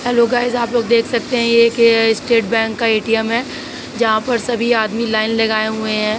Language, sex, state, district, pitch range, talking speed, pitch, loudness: Hindi, female, Uttar Pradesh, Jalaun, 225-235 Hz, 240 wpm, 230 Hz, -15 LUFS